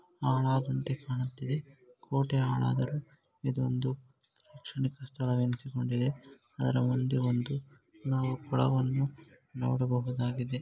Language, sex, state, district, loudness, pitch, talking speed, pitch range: Kannada, male, Karnataka, Dharwad, -32 LUFS, 130 Hz, 80 wpm, 125-135 Hz